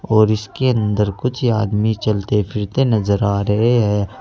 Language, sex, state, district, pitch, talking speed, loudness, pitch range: Hindi, male, Uttar Pradesh, Saharanpur, 105 Hz, 155 wpm, -17 LUFS, 105-115 Hz